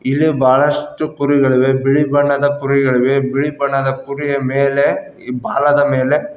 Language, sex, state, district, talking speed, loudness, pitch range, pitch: Kannada, male, Karnataka, Koppal, 125 wpm, -15 LUFS, 135-145 Hz, 140 Hz